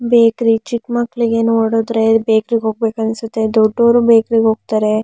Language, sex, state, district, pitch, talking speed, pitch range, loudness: Kannada, male, Karnataka, Mysore, 225 Hz, 145 wpm, 220-235 Hz, -14 LUFS